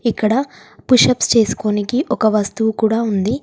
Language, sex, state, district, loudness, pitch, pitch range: Telugu, female, Telangana, Komaram Bheem, -16 LUFS, 225 Hz, 215-250 Hz